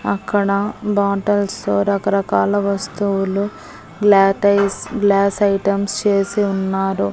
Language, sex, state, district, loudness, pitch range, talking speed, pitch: Telugu, female, Andhra Pradesh, Annamaya, -17 LUFS, 195-205 Hz, 75 wpm, 200 Hz